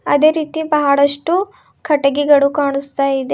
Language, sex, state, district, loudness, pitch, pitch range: Kannada, female, Karnataka, Bidar, -15 LUFS, 290 Hz, 280-310 Hz